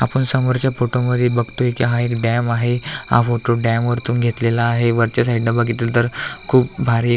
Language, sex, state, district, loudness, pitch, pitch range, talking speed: Marathi, male, Maharashtra, Aurangabad, -18 LUFS, 120 Hz, 115-125 Hz, 185 wpm